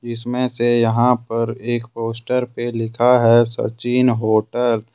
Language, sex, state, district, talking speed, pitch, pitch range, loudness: Hindi, male, Jharkhand, Ranchi, 145 wpm, 120 Hz, 115-125 Hz, -18 LUFS